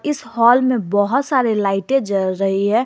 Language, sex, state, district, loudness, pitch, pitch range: Hindi, female, Jharkhand, Garhwa, -17 LUFS, 225 Hz, 195-260 Hz